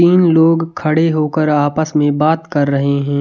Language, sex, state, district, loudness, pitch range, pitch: Hindi, male, Chhattisgarh, Raipur, -14 LUFS, 145-165 Hz, 155 Hz